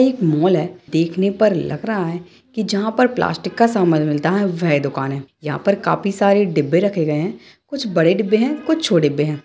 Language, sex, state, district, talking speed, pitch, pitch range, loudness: Hindi, male, Bihar, Darbhanga, 210 wpm, 180 Hz, 160-210 Hz, -18 LUFS